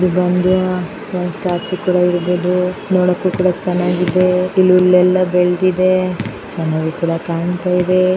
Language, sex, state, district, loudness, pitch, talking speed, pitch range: Kannada, female, Karnataka, Dakshina Kannada, -15 LUFS, 180 Hz, 105 wpm, 180-185 Hz